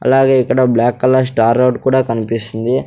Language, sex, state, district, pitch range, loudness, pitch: Telugu, male, Andhra Pradesh, Sri Satya Sai, 115-130 Hz, -14 LUFS, 125 Hz